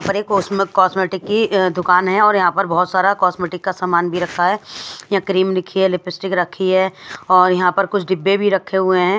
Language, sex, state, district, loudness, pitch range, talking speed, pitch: Hindi, female, Haryana, Rohtak, -16 LUFS, 180-195 Hz, 230 wpm, 190 Hz